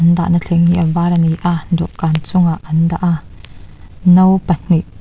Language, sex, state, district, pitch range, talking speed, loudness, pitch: Mizo, female, Mizoram, Aizawl, 165-175 Hz, 180 wpm, -14 LUFS, 170 Hz